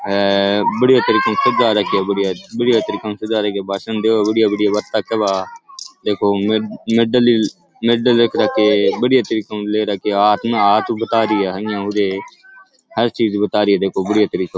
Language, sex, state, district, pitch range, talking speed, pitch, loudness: Rajasthani, male, Rajasthan, Churu, 100-115 Hz, 210 wpm, 105 Hz, -16 LUFS